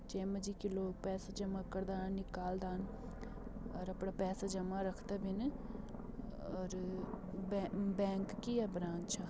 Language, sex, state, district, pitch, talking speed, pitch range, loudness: Garhwali, female, Uttarakhand, Tehri Garhwal, 195 Hz, 160 wpm, 190-205 Hz, -42 LUFS